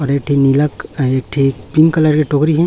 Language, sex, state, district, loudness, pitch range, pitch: Hindi, male, Chhattisgarh, Raipur, -14 LUFS, 135-155 Hz, 145 Hz